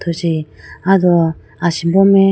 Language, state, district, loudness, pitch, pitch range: Idu Mishmi, Arunachal Pradesh, Lower Dibang Valley, -15 LUFS, 170 Hz, 165-195 Hz